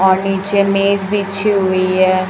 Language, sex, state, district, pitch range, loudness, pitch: Hindi, male, Chhattisgarh, Raipur, 185-200 Hz, -14 LUFS, 195 Hz